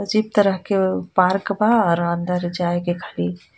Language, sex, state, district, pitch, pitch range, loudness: Bhojpuri, female, Jharkhand, Palamu, 180 Hz, 170-200 Hz, -20 LUFS